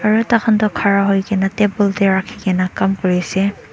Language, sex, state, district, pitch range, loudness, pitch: Nagamese, male, Nagaland, Dimapur, 190-210 Hz, -16 LUFS, 195 Hz